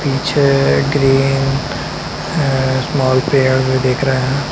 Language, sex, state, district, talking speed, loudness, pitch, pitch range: Hindi, male, Uttar Pradesh, Lalitpur, 105 wpm, -15 LUFS, 135 Hz, 130-140 Hz